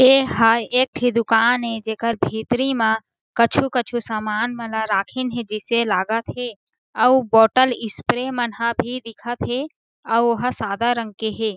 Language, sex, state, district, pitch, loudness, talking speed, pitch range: Chhattisgarhi, female, Chhattisgarh, Jashpur, 235 Hz, -20 LUFS, 170 wpm, 220-245 Hz